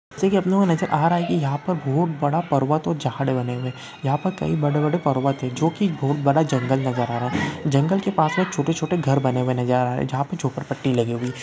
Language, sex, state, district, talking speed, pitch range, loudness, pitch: Hindi, male, Uttarakhand, Uttarkashi, 275 wpm, 130-165 Hz, -22 LUFS, 145 Hz